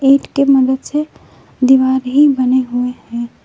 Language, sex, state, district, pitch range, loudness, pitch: Hindi, female, Jharkhand, Palamu, 250-275 Hz, -14 LUFS, 260 Hz